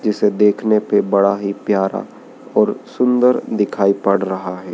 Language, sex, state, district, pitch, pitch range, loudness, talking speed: Hindi, male, Madhya Pradesh, Dhar, 100 Hz, 100-105 Hz, -17 LUFS, 150 wpm